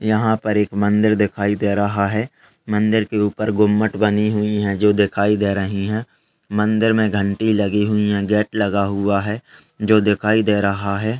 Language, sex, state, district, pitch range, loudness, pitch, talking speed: Hindi, male, Uttar Pradesh, Ghazipur, 100-110 Hz, -18 LUFS, 105 Hz, 190 wpm